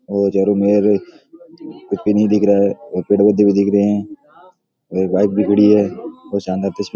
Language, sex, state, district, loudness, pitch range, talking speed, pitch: Rajasthani, male, Rajasthan, Nagaur, -16 LUFS, 100-105 Hz, 180 wpm, 105 Hz